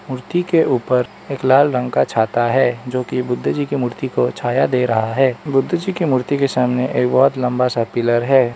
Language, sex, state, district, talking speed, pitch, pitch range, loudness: Hindi, male, Arunachal Pradesh, Lower Dibang Valley, 225 wpm, 125 Hz, 125-135 Hz, -17 LUFS